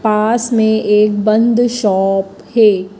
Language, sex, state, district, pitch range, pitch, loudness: Hindi, male, Madhya Pradesh, Dhar, 200-225 Hz, 215 Hz, -13 LUFS